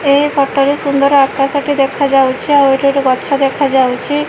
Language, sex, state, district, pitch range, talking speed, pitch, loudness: Odia, female, Odisha, Malkangiri, 270-285 Hz, 195 wpm, 275 Hz, -12 LUFS